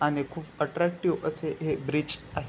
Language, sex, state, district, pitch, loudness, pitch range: Marathi, male, Maharashtra, Chandrapur, 150 Hz, -28 LUFS, 145-165 Hz